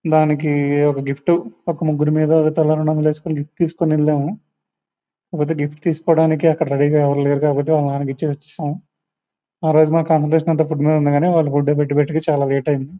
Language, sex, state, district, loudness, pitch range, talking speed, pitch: Telugu, male, Andhra Pradesh, Guntur, -17 LUFS, 145-160 Hz, 195 wpm, 155 Hz